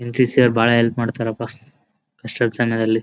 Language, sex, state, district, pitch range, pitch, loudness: Kannada, male, Karnataka, Bellary, 115-120 Hz, 120 Hz, -18 LUFS